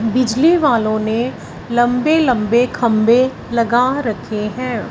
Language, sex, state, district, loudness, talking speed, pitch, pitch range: Hindi, female, Punjab, Fazilka, -16 LUFS, 110 wpm, 240 Hz, 225-255 Hz